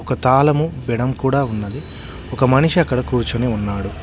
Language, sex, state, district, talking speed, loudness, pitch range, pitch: Telugu, male, Telangana, Hyderabad, 150 wpm, -18 LUFS, 110-135 Hz, 125 Hz